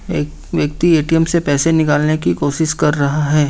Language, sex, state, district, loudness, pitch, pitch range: Hindi, male, Jharkhand, Ranchi, -15 LUFS, 150 Hz, 145-160 Hz